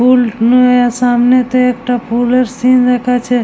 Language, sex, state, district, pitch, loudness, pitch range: Bengali, male, West Bengal, Jalpaiguri, 250 Hz, -11 LUFS, 245-250 Hz